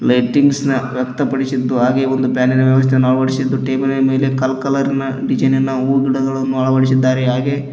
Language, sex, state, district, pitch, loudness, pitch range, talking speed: Kannada, male, Karnataka, Koppal, 130 Hz, -15 LUFS, 130-135 Hz, 155 wpm